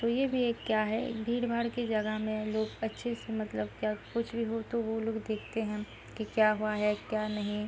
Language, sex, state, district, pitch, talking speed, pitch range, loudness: Hindi, female, Uttar Pradesh, Varanasi, 220 Hz, 220 wpm, 215-235 Hz, -33 LUFS